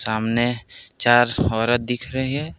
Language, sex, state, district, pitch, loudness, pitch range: Hindi, male, Jharkhand, Ranchi, 120 Hz, -20 LUFS, 115-125 Hz